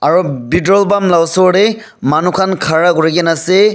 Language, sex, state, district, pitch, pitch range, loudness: Nagamese, male, Nagaland, Dimapur, 180 Hz, 165-195 Hz, -12 LUFS